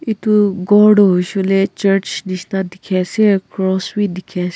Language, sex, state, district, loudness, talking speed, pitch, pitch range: Nagamese, female, Nagaland, Kohima, -15 LUFS, 185 wpm, 195 Hz, 185-205 Hz